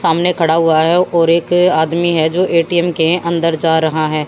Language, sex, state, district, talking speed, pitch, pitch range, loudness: Hindi, female, Haryana, Jhajjar, 210 wpm, 165 Hz, 160-175 Hz, -13 LUFS